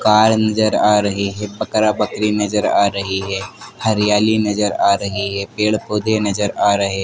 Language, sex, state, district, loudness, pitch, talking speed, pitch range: Hindi, male, Madhya Pradesh, Dhar, -17 LUFS, 105 Hz, 180 wpm, 100-110 Hz